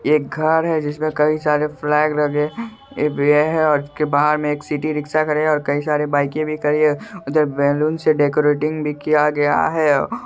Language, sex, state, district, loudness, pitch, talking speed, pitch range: Hindi, male, Bihar, Supaul, -18 LUFS, 150 Hz, 200 wpm, 150-155 Hz